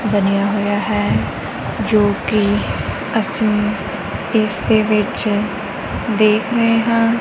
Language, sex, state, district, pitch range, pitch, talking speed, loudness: Punjabi, female, Punjab, Kapurthala, 205-220 Hz, 210 Hz, 100 wpm, -17 LUFS